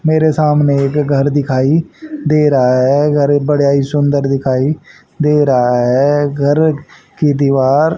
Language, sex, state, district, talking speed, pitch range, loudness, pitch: Hindi, male, Haryana, Jhajjar, 145 wpm, 140-150 Hz, -13 LUFS, 145 Hz